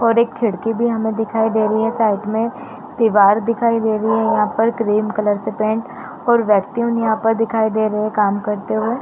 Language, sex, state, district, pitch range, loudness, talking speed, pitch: Hindi, female, Uttar Pradesh, Varanasi, 215-230 Hz, -17 LUFS, 215 wpm, 220 Hz